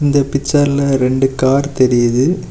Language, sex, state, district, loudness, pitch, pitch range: Tamil, male, Tamil Nadu, Kanyakumari, -14 LUFS, 135 Hz, 130-140 Hz